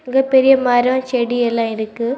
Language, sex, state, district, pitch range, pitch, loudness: Tamil, female, Tamil Nadu, Kanyakumari, 235-260 Hz, 245 Hz, -15 LUFS